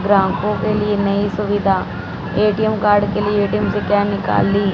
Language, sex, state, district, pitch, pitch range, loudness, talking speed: Hindi, female, Punjab, Fazilka, 205 Hz, 200-210 Hz, -17 LUFS, 175 wpm